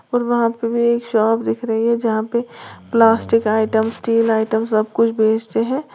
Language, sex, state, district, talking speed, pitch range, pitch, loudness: Hindi, female, Uttar Pradesh, Lalitpur, 190 wpm, 220-235 Hz, 230 Hz, -18 LUFS